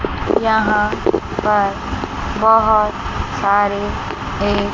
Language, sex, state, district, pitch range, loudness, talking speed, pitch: Hindi, female, Chandigarh, Chandigarh, 205-220 Hz, -17 LUFS, 65 wpm, 210 Hz